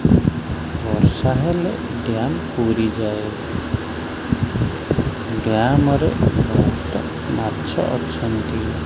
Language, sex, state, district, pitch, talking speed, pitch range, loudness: Odia, male, Odisha, Khordha, 110 Hz, 70 wpm, 80-115 Hz, -20 LUFS